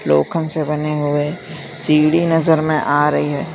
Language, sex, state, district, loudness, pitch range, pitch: Hindi, male, Gujarat, Valsad, -17 LUFS, 145-160 Hz, 150 Hz